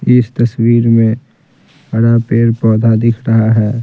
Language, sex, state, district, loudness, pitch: Hindi, male, Bihar, Patna, -11 LUFS, 115 Hz